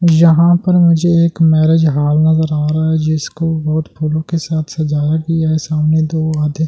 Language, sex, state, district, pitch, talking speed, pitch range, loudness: Hindi, male, Delhi, New Delhi, 160 Hz, 190 wpm, 155-165 Hz, -13 LUFS